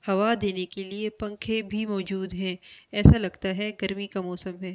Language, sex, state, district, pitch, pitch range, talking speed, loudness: Hindi, female, Delhi, New Delhi, 195 Hz, 190-210 Hz, 190 wpm, -27 LUFS